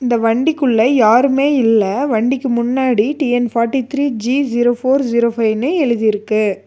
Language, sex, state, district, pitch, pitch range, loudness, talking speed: Tamil, female, Tamil Nadu, Nilgiris, 240 Hz, 225-270 Hz, -15 LUFS, 135 wpm